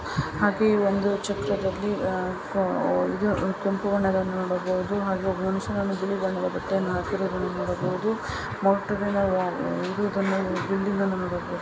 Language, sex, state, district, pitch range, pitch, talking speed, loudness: Kannada, female, Karnataka, Chamarajanagar, 185-200 Hz, 195 Hz, 115 wpm, -26 LUFS